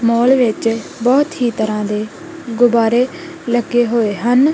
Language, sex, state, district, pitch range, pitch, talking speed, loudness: Punjabi, female, Punjab, Kapurthala, 230-260 Hz, 240 Hz, 130 wpm, -15 LUFS